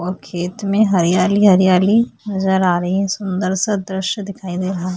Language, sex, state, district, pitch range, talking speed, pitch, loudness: Hindi, female, Maharashtra, Aurangabad, 180-200 Hz, 195 wpm, 190 Hz, -17 LUFS